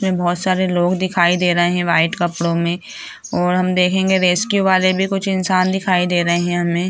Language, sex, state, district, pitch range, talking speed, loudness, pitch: Hindi, female, Bihar, Lakhisarai, 175-185 Hz, 210 wpm, -17 LUFS, 180 Hz